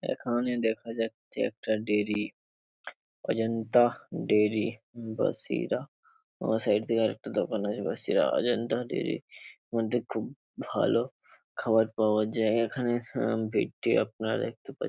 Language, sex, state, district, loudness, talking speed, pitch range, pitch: Bengali, male, West Bengal, Paschim Medinipur, -29 LUFS, 130 wpm, 110-120 Hz, 115 Hz